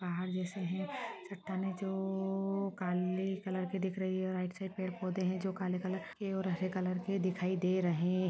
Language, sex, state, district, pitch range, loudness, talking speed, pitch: Hindi, female, Chhattisgarh, Rajnandgaon, 185-190 Hz, -37 LUFS, 215 wpm, 185 Hz